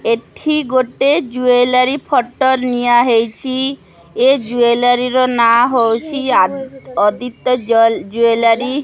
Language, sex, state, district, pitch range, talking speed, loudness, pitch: Odia, female, Odisha, Khordha, 230-260 Hz, 110 wpm, -14 LUFS, 245 Hz